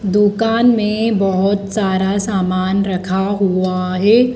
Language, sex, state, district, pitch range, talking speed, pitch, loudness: Hindi, female, Madhya Pradesh, Dhar, 190-210 Hz, 110 wpm, 200 Hz, -16 LUFS